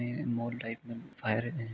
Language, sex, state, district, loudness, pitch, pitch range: Hindi, male, Jharkhand, Jamtara, -36 LUFS, 120 Hz, 115-120 Hz